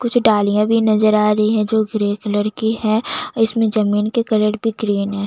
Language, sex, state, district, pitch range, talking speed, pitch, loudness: Hindi, female, Chhattisgarh, Jashpur, 210-225 Hz, 215 wpm, 215 Hz, -17 LUFS